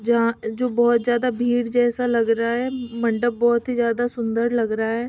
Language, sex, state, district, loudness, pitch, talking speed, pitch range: Hindi, female, Bihar, Muzaffarpur, -21 LUFS, 235 Hz, 200 wpm, 230-245 Hz